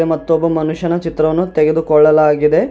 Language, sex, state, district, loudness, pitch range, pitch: Kannada, male, Karnataka, Bidar, -13 LUFS, 155-165 Hz, 160 Hz